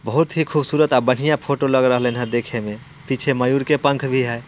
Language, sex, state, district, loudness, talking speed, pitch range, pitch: Bhojpuri, male, Bihar, Muzaffarpur, -19 LUFS, 215 wpm, 125-145 Hz, 135 Hz